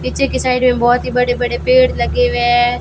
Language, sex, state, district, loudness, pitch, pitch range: Hindi, female, Rajasthan, Bikaner, -14 LUFS, 250 Hz, 245-255 Hz